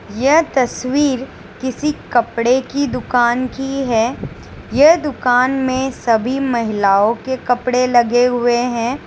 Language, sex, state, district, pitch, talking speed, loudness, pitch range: Hindi, female, Gujarat, Valsad, 250 Hz, 120 wpm, -16 LUFS, 240-265 Hz